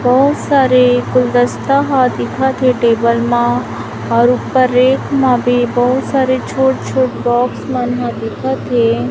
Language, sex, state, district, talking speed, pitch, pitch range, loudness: Hindi, female, Chhattisgarh, Raipur, 130 wpm, 250 Hz, 240-260 Hz, -14 LUFS